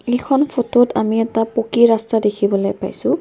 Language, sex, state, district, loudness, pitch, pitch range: Assamese, female, Assam, Kamrup Metropolitan, -17 LUFS, 230 Hz, 225-245 Hz